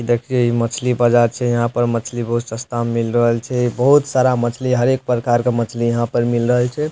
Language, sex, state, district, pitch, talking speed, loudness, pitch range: Maithili, male, Bihar, Supaul, 120 Hz, 235 wpm, -17 LUFS, 120-125 Hz